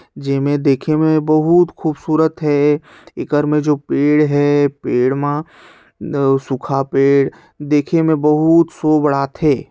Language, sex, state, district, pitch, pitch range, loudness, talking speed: Chhattisgarhi, male, Chhattisgarh, Sarguja, 145 Hz, 140-155 Hz, -15 LUFS, 135 wpm